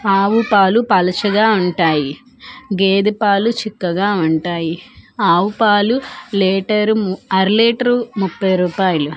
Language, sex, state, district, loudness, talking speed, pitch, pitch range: Telugu, female, Andhra Pradesh, Manyam, -15 LUFS, 100 wpm, 200 Hz, 185-220 Hz